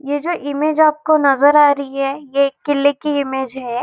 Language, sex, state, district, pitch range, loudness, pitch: Hindi, female, Maharashtra, Nagpur, 275-295 Hz, -16 LUFS, 285 Hz